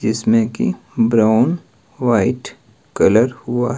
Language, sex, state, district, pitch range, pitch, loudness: Hindi, male, Himachal Pradesh, Shimla, 110-120 Hz, 115 Hz, -17 LUFS